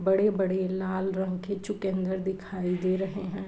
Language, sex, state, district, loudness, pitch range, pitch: Hindi, female, Uttar Pradesh, Varanasi, -29 LUFS, 185-195 Hz, 190 Hz